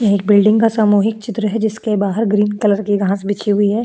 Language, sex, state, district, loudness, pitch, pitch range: Hindi, female, Uttar Pradesh, Jyotiba Phule Nagar, -15 LUFS, 210 Hz, 205-220 Hz